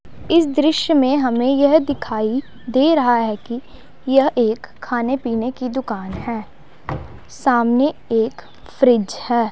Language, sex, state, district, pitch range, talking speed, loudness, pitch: Hindi, female, Punjab, Pathankot, 235-275 Hz, 130 wpm, -18 LUFS, 250 Hz